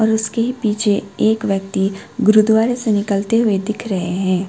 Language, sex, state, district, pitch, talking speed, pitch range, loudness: Hindi, female, West Bengal, Alipurduar, 215 Hz, 145 wpm, 195-220 Hz, -17 LUFS